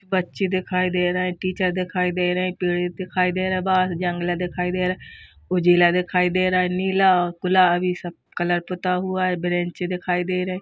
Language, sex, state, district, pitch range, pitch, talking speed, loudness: Hindi, female, Uttar Pradesh, Jalaun, 180-185 Hz, 180 Hz, 190 wpm, -22 LUFS